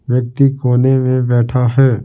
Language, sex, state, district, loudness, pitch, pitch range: Hindi, male, Bihar, Patna, -13 LUFS, 125 Hz, 125-130 Hz